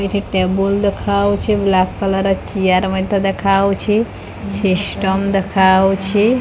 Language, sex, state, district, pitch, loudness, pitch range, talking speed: Odia, female, Odisha, Khordha, 195 Hz, -16 LUFS, 190-200 Hz, 120 wpm